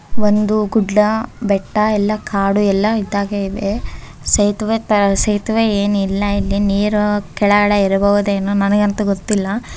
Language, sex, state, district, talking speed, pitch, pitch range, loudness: Kannada, male, Karnataka, Bellary, 110 wpm, 205 Hz, 200-210 Hz, -16 LUFS